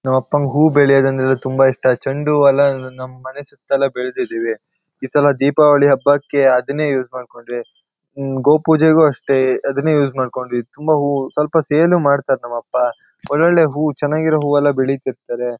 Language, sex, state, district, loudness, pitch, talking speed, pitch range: Kannada, male, Karnataka, Shimoga, -16 LUFS, 140 Hz, 130 wpm, 130-150 Hz